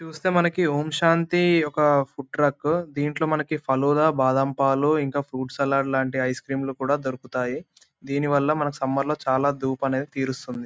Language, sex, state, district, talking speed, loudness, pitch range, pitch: Telugu, male, Andhra Pradesh, Anantapur, 180 wpm, -23 LUFS, 135-150 Hz, 140 Hz